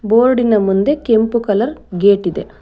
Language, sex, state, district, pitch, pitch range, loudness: Kannada, female, Karnataka, Bangalore, 220 Hz, 200-235 Hz, -14 LUFS